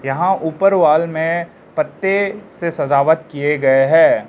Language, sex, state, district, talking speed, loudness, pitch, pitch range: Hindi, male, Arunachal Pradesh, Lower Dibang Valley, 140 wpm, -16 LUFS, 165 Hz, 150-195 Hz